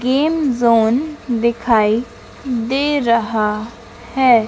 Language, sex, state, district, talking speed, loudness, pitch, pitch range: Hindi, female, Madhya Pradesh, Dhar, 80 wpm, -17 LUFS, 235 Hz, 230-265 Hz